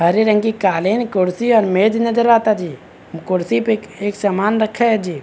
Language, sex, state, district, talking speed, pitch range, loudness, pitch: Hindi, male, Bihar, Begusarai, 195 wpm, 185-220 Hz, -16 LUFS, 210 Hz